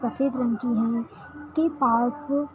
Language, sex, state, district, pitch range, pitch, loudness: Hindi, female, Jharkhand, Sahebganj, 235-290 Hz, 255 Hz, -25 LUFS